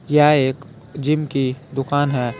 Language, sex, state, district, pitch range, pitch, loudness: Hindi, male, Uttar Pradesh, Saharanpur, 130-150 Hz, 140 Hz, -19 LUFS